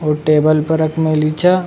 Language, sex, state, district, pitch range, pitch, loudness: Rajasthani, male, Rajasthan, Nagaur, 155-160 Hz, 155 Hz, -14 LUFS